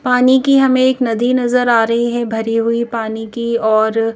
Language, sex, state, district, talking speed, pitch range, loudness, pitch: Hindi, female, Madhya Pradesh, Bhopal, 200 wpm, 225-250 Hz, -14 LUFS, 235 Hz